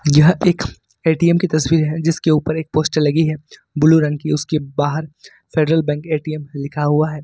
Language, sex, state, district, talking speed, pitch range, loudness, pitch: Hindi, male, Jharkhand, Ranchi, 190 wpm, 150-160 Hz, -17 LUFS, 155 Hz